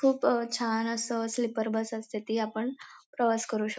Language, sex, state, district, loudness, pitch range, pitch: Marathi, female, Maharashtra, Pune, -30 LUFS, 220-235 Hz, 225 Hz